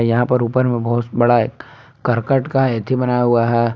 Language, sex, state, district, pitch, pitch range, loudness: Hindi, male, Jharkhand, Palamu, 120 Hz, 115-130 Hz, -17 LUFS